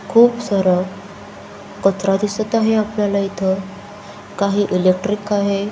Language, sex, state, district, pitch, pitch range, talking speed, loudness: Marathi, female, Maharashtra, Chandrapur, 200 Hz, 195-205 Hz, 105 wpm, -18 LUFS